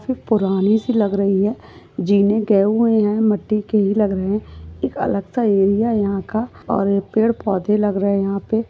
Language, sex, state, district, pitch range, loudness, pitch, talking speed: Hindi, female, Maharashtra, Pune, 195-220 Hz, -18 LUFS, 205 Hz, 205 wpm